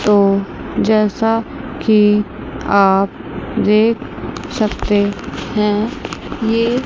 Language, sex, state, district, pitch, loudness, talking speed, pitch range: Hindi, female, Chandigarh, Chandigarh, 210 Hz, -16 LUFS, 70 wpm, 205-225 Hz